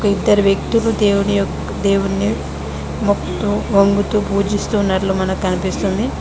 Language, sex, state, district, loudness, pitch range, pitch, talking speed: Telugu, female, Telangana, Mahabubabad, -17 LUFS, 190-205 Hz, 200 Hz, 95 wpm